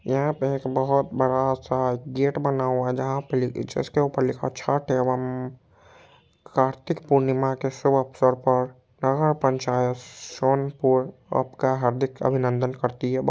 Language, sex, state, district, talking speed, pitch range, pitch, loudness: Hindi, male, Bihar, Purnia, 160 wpm, 130-135 Hz, 130 Hz, -24 LUFS